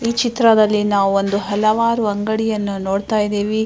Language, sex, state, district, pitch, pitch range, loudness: Kannada, female, Karnataka, Mysore, 215 Hz, 205-220 Hz, -17 LUFS